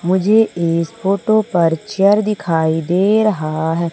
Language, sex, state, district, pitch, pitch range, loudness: Hindi, female, Madhya Pradesh, Umaria, 185 Hz, 165-210 Hz, -16 LUFS